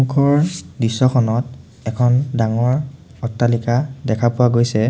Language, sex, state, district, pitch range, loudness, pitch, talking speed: Assamese, male, Assam, Sonitpur, 115-130 Hz, -18 LUFS, 120 Hz, 85 wpm